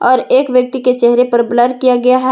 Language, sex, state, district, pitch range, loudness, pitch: Hindi, female, Jharkhand, Ranchi, 245-255 Hz, -12 LUFS, 250 Hz